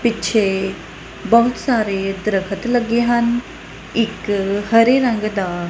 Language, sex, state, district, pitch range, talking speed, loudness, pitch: Punjabi, female, Punjab, Kapurthala, 195-235 Hz, 105 wpm, -18 LUFS, 225 Hz